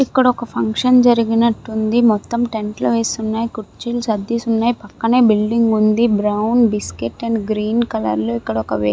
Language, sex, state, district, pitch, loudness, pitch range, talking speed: Telugu, female, Andhra Pradesh, Visakhapatnam, 225 Hz, -17 LUFS, 210-235 Hz, 175 wpm